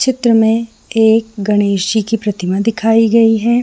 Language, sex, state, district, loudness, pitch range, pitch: Hindi, female, Jharkhand, Jamtara, -13 LUFS, 210-230 Hz, 225 Hz